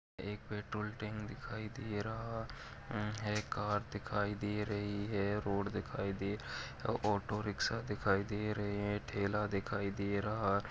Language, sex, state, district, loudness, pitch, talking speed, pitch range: Hindi, male, Uttar Pradesh, Deoria, -38 LUFS, 105 Hz, 155 wpm, 100-105 Hz